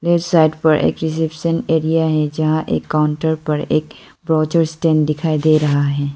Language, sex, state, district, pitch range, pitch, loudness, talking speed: Hindi, female, Arunachal Pradesh, Lower Dibang Valley, 155-160 Hz, 155 Hz, -17 LUFS, 165 wpm